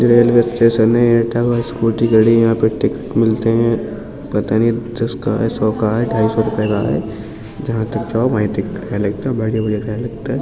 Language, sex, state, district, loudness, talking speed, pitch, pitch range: Hindi, female, Uttar Pradesh, Etah, -16 LUFS, 240 wpm, 115 Hz, 110-115 Hz